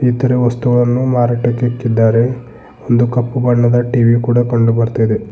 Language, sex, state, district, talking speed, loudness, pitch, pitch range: Kannada, male, Karnataka, Bidar, 125 wpm, -14 LUFS, 120 Hz, 115-125 Hz